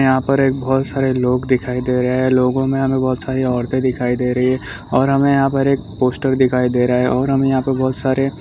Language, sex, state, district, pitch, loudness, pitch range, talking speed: Hindi, male, Chhattisgarh, Sukma, 130 Hz, -17 LUFS, 125-135 Hz, 265 wpm